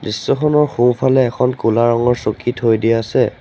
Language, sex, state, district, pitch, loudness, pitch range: Assamese, male, Assam, Sonitpur, 120 Hz, -15 LUFS, 115-130 Hz